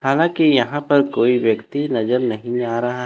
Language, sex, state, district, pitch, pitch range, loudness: Hindi, male, Chandigarh, Chandigarh, 125 Hz, 120-145 Hz, -18 LUFS